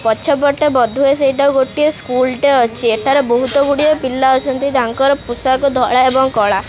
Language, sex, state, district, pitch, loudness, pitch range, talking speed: Odia, male, Odisha, Khordha, 265 Hz, -13 LUFS, 250-280 Hz, 170 wpm